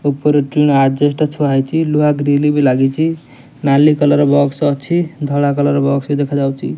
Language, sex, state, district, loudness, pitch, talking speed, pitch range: Odia, male, Odisha, Nuapada, -14 LUFS, 145 Hz, 140 wpm, 140-150 Hz